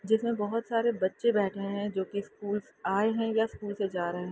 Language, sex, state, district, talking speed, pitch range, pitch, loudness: Hindi, female, Bihar, Saran, 220 wpm, 195-225 Hz, 205 Hz, -30 LUFS